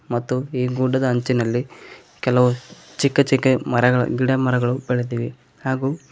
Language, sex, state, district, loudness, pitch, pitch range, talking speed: Kannada, male, Karnataka, Koppal, -20 LUFS, 125 Hz, 125-130 Hz, 125 wpm